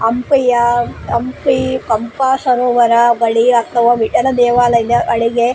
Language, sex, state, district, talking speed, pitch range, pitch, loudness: Kannada, female, Karnataka, Koppal, 110 wpm, 235-250 Hz, 240 Hz, -13 LUFS